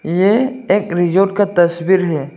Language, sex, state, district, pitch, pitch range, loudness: Hindi, male, Arunachal Pradesh, Lower Dibang Valley, 185 Hz, 175-200 Hz, -15 LUFS